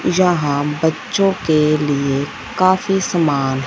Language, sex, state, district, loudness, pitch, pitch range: Hindi, female, Punjab, Fazilka, -17 LUFS, 155 Hz, 145-185 Hz